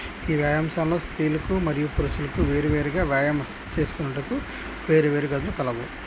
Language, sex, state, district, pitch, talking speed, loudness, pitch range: Telugu, male, Andhra Pradesh, Srikakulam, 150 Hz, 110 wpm, -25 LUFS, 145-160 Hz